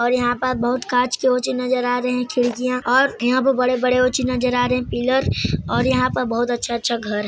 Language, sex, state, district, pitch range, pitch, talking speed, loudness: Hindi, male, Chhattisgarh, Sarguja, 245-255 Hz, 250 Hz, 245 wpm, -19 LUFS